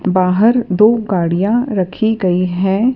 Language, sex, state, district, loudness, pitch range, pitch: Hindi, female, Madhya Pradesh, Dhar, -14 LUFS, 185-220 Hz, 190 Hz